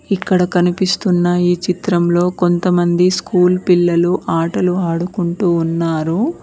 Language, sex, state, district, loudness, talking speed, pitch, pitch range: Telugu, female, Telangana, Mahabubabad, -15 LUFS, 95 wpm, 180 Hz, 175-185 Hz